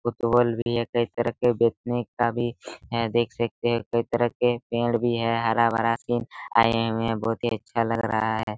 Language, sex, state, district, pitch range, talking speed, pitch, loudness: Hindi, male, Bihar, Araria, 115-120 Hz, 215 wpm, 115 Hz, -25 LUFS